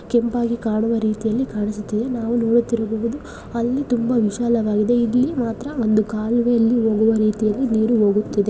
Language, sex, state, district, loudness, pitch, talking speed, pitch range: Kannada, female, Karnataka, Chamarajanagar, -20 LUFS, 230 Hz, 120 wpm, 215-240 Hz